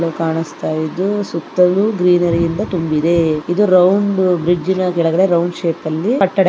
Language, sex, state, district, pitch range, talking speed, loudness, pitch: Kannada, female, Karnataka, Mysore, 165-190 Hz, 130 wpm, -15 LUFS, 175 Hz